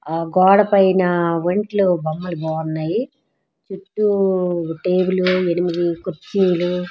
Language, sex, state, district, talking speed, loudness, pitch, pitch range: Telugu, female, Andhra Pradesh, Srikakulam, 120 wpm, -18 LUFS, 180 Hz, 170-195 Hz